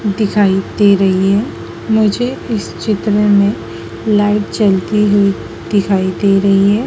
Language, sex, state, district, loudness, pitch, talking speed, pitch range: Hindi, female, Madhya Pradesh, Dhar, -13 LUFS, 200 Hz, 130 wpm, 195-210 Hz